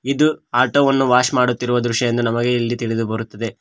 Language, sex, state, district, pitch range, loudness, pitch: Kannada, male, Karnataka, Koppal, 115-125 Hz, -18 LUFS, 120 Hz